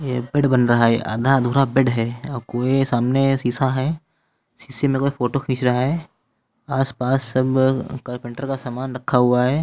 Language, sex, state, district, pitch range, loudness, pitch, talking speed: Hindi, male, Bihar, Katihar, 125-135 Hz, -20 LUFS, 130 Hz, 180 wpm